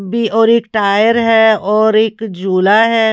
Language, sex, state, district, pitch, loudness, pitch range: Hindi, female, Punjab, Pathankot, 220 Hz, -12 LUFS, 210-225 Hz